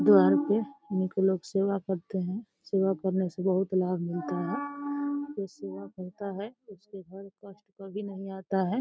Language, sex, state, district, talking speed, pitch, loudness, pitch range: Hindi, female, Uttar Pradesh, Deoria, 155 wpm, 195 Hz, -30 LUFS, 185-205 Hz